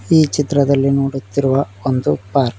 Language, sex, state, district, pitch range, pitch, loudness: Kannada, male, Karnataka, Koppal, 130-140 Hz, 140 Hz, -16 LUFS